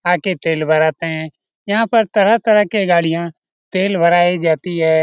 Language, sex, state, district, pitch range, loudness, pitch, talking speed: Hindi, male, Bihar, Lakhisarai, 160-200 Hz, -15 LUFS, 175 Hz, 155 wpm